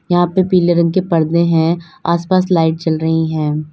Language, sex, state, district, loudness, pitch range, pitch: Hindi, female, Uttar Pradesh, Lalitpur, -15 LUFS, 160-175 Hz, 170 Hz